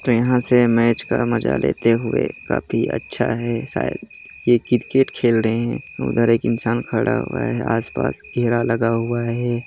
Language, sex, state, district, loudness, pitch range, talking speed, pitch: Hindi, male, Chhattisgarh, Jashpur, -20 LUFS, 115-120 Hz, 175 wpm, 120 Hz